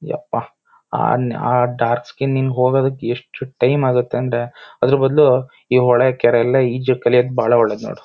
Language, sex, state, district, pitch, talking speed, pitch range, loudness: Kannada, male, Karnataka, Shimoga, 125 Hz, 140 wpm, 120-130 Hz, -17 LUFS